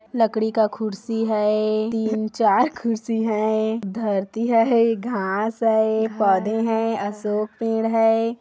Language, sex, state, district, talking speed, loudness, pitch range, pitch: Hindi, female, Chhattisgarh, Kabirdham, 120 wpm, -21 LUFS, 215-225 Hz, 220 Hz